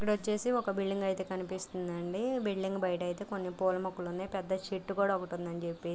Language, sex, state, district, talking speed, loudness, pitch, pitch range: Telugu, female, Andhra Pradesh, Guntur, 190 wpm, -35 LUFS, 190 Hz, 180-200 Hz